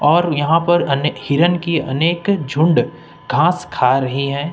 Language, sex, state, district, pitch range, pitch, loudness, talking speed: Hindi, male, Jharkhand, Ranchi, 145-170 Hz, 160 Hz, -16 LUFS, 160 wpm